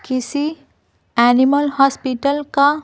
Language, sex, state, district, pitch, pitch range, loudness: Hindi, female, Bihar, Patna, 280 Hz, 260-290 Hz, -17 LUFS